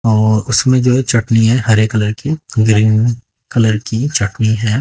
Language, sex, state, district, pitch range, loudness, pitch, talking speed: Hindi, female, Haryana, Jhajjar, 110-125 Hz, -13 LUFS, 115 Hz, 175 wpm